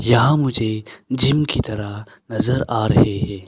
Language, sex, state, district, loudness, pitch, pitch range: Hindi, male, Arunachal Pradesh, Longding, -18 LUFS, 115 Hz, 110-130 Hz